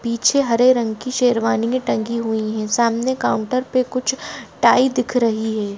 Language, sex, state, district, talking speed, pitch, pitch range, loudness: Hindi, female, Bihar, Jamui, 165 wpm, 240 Hz, 220-255 Hz, -18 LUFS